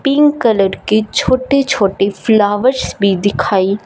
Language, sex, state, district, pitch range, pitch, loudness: Hindi, female, Punjab, Fazilka, 200-260 Hz, 215 Hz, -13 LUFS